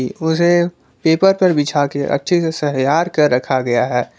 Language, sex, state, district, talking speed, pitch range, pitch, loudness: Hindi, male, Jharkhand, Palamu, 155 wpm, 135-170 Hz, 150 Hz, -16 LUFS